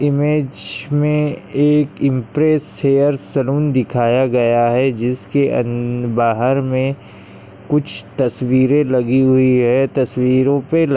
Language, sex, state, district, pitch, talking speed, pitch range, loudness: Hindi, male, Maharashtra, Chandrapur, 130 Hz, 105 wpm, 120-145 Hz, -16 LUFS